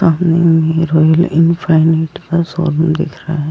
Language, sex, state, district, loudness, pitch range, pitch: Hindi, female, Goa, North and South Goa, -13 LUFS, 160-170 Hz, 165 Hz